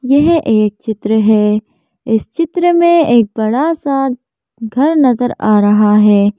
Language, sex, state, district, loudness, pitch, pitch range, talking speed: Hindi, female, Madhya Pradesh, Bhopal, -12 LUFS, 230 Hz, 215-285 Hz, 140 wpm